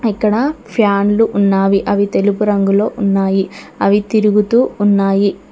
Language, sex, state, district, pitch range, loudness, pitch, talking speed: Telugu, female, Telangana, Mahabubabad, 200-215 Hz, -14 LUFS, 205 Hz, 110 wpm